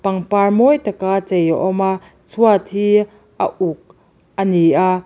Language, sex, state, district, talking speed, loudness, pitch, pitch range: Mizo, female, Mizoram, Aizawl, 155 wpm, -16 LUFS, 195 Hz, 185-205 Hz